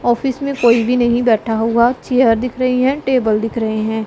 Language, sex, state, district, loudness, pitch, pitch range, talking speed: Hindi, female, Punjab, Pathankot, -15 LUFS, 240 Hz, 225-255 Hz, 220 wpm